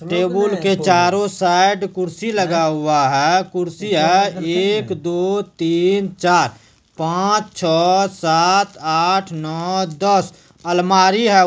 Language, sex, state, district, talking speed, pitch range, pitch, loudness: Hindi, male, Bihar, Supaul, 115 wpm, 170-195 Hz, 185 Hz, -17 LUFS